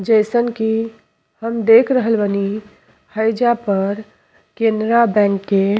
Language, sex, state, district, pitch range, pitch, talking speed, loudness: Bhojpuri, female, Uttar Pradesh, Ghazipur, 205-230 Hz, 220 Hz, 115 wpm, -16 LUFS